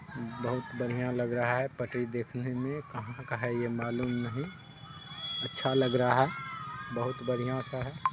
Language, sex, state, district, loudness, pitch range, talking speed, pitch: Hindi, male, Bihar, Saharsa, -32 LUFS, 120-135 Hz, 160 wpm, 125 Hz